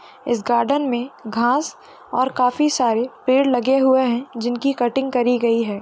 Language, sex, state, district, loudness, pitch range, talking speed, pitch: Hindi, female, Bihar, Muzaffarpur, -19 LUFS, 240-265 Hz, 165 wpm, 250 Hz